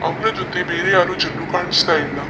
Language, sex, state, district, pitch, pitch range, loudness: Kannada, male, Karnataka, Dakshina Kannada, 180 Hz, 165-190 Hz, -18 LUFS